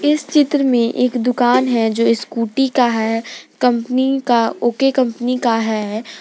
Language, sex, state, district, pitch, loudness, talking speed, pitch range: Hindi, female, Jharkhand, Garhwa, 245 Hz, -16 LUFS, 155 wpm, 230-260 Hz